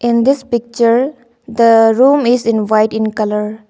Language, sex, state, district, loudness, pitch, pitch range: English, female, Arunachal Pradesh, Longding, -13 LUFS, 230 Hz, 220-245 Hz